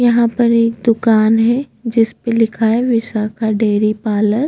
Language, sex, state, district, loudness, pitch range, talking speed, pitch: Hindi, female, Chhattisgarh, Bastar, -15 LUFS, 220-235 Hz, 160 wpm, 230 Hz